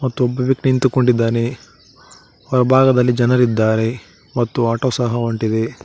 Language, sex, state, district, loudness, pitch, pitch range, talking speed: Kannada, male, Karnataka, Koppal, -17 LUFS, 125 Hz, 115-130 Hz, 105 wpm